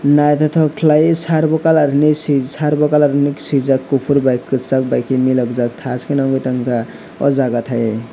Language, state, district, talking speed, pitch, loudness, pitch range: Kokborok, Tripura, West Tripura, 160 wpm, 140 Hz, -15 LUFS, 130-150 Hz